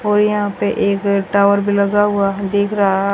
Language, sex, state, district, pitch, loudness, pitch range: Hindi, female, Haryana, Rohtak, 200 Hz, -16 LUFS, 200-205 Hz